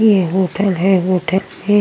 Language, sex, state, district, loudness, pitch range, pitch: Hindi, female, Uttar Pradesh, Jyotiba Phule Nagar, -16 LUFS, 185-200 Hz, 190 Hz